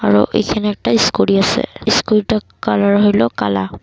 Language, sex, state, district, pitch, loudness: Bengali, female, Assam, Kamrup Metropolitan, 200 Hz, -15 LUFS